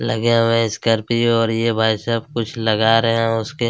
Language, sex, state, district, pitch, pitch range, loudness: Hindi, male, Chhattisgarh, Kabirdham, 115 Hz, 110-115 Hz, -18 LUFS